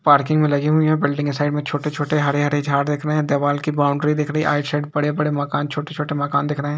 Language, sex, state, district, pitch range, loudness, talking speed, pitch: Hindi, male, Bihar, East Champaran, 145-150 Hz, -20 LUFS, 335 wpm, 145 Hz